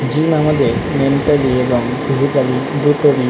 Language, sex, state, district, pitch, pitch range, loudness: Bengali, male, West Bengal, North 24 Parganas, 140 Hz, 130-145 Hz, -15 LUFS